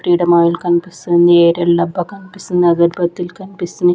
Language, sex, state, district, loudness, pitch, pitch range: Telugu, female, Andhra Pradesh, Sri Satya Sai, -13 LUFS, 175 Hz, 170-180 Hz